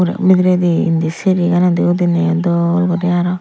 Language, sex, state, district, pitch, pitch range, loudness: Chakma, female, Tripura, Unakoti, 175 Hz, 170-180 Hz, -14 LUFS